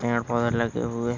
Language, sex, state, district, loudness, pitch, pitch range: Hindi, male, Uttar Pradesh, Hamirpur, -26 LUFS, 120 Hz, 115-120 Hz